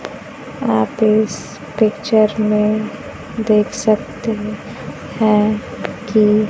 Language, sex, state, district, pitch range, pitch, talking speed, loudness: Hindi, female, Bihar, Kaimur, 210-220 Hz, 215 Hz, 85 wpm, -17 LUFS